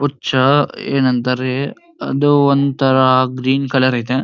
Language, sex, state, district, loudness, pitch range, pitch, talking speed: Kannada, male, Karnataka, Dharwad, -15 LUFS, 130-140 Hz, 135 Hz, 100 wpm